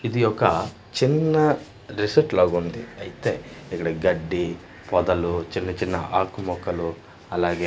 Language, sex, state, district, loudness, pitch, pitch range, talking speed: Telugu, male, Andhra Pradesh, Manyam, -24 LUFS, 95 Hz, 90-115 Hz, 110 wpm